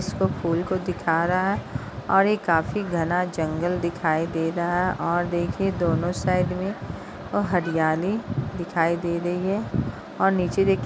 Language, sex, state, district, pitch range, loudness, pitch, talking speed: Hindi, female, Uttar Pradesh, Budaun, 165-185 Hz, -24 LUFS, 175 Hz, 165 wpm